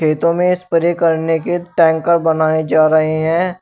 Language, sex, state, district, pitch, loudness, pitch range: Hindi, male, Uttar Pradesh, Shamli, 165 Hz, -15 LUFS, 160-175 Hz